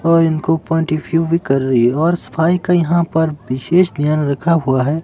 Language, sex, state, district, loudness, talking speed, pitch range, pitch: Hindi, male, Himachal Pradesh, Shimla, -16 LUFS, 180 wpm, 145-165 Hz, 160 Hz